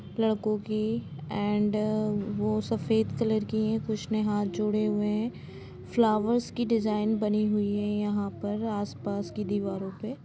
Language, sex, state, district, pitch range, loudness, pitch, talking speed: Hindi, female, Bihar, Gopalganj, 205-220 Hz, -29 LUFS, 215 Hz, 305 wpm